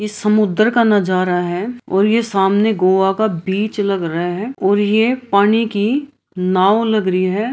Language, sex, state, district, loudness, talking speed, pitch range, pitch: Hindi, female, Bihar, Araria, -16 LUFS, 175 wpm, 190-220 Hz, 205 Hz